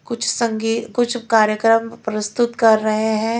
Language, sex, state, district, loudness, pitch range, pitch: Hindi, female, Chhattisgarh, Raipur, -18 LUFS, 220-235 Hz, 225 Hz